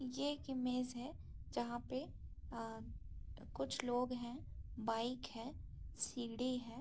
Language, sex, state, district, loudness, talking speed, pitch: Hindi, female, Bihar, Saharsa, -44 LUFS, 115 wpm, 240 Hz